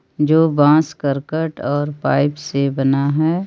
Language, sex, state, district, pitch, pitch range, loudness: Hindi, female, Jharkhand, Palamu, 145 Hz, 140-155 Hz, -17 LUFS